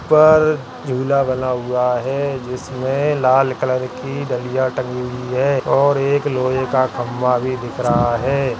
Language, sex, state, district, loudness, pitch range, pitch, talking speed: Hindi, male, Uttarakhand, Tehri Garhwal, -18 LUFS, 125-135 Hz, 130 Hz, 155 wpm